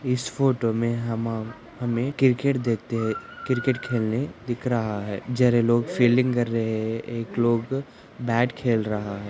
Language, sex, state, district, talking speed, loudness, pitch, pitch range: Hindi, male, Andhra Pradesh, Anantapur, 50 wpm, -24 LUFS, 120 Hz, 115-125 Hz